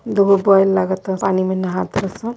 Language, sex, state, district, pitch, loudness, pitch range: Hindi, female, Uttar Pradesh, Varanasi, 195 Hz, -17 LUFS, 190-200 Hz